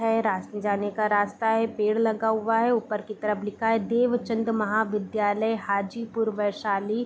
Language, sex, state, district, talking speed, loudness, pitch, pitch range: Hindi, female, Bihar, Vaishali, 160 wpm, -26 LUFS, 220 Hz, 210-225 Hz